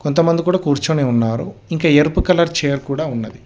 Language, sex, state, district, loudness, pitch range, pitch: Telugu, male, Telangana, Hyderabad, -17 LUFS, 135-170 Hz, 150 Hz